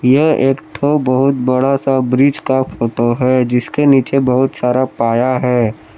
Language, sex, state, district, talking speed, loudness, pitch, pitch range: Hindi, male, Jharkhand, Palamu, 160 wpm, -14 LUFS, 130 Hz, 125-135 Hz